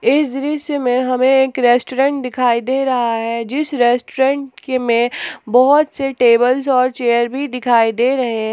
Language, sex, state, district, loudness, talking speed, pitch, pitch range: Hindi, female, Jharkhand, Palamu, -16 LUFS, 160 wpm, 255 Hz, 240-270 Hz